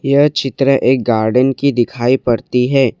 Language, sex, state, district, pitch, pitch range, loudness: Hindi, male, Assam, Kamrup Metropolitan, 130 Hz, 120-135 Hz, -14 LUFS